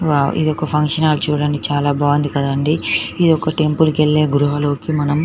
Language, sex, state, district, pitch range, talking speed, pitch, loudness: Telugu, female, Telangana, Nalgonda, 145-155 Hz, 180 wpm, 150 Hz, -16 LUFS